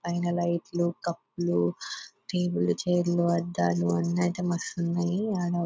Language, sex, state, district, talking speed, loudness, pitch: Telugu, female, Telangana, Nalgonda, 125 wpm, -28 LUFS, 170 Hz